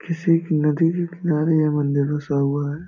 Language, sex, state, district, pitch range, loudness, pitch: Hindi, male, Bihar, Jamui, 145-165 Hz, -21 LUFS, 155 Hz